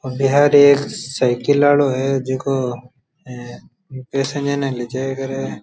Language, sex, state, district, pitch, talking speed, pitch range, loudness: Rajasthani, male, Rajasthan, Churu, 135 Hz, 140 wpm, 130-140 Hz, -17 LUFS